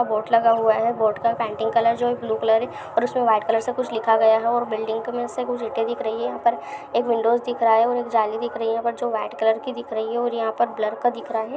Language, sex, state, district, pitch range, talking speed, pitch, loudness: Hindi, female, Bihar, Lakhisarai, 220-240 Hz, 305 wpm, 230 Hz, -22 LUFS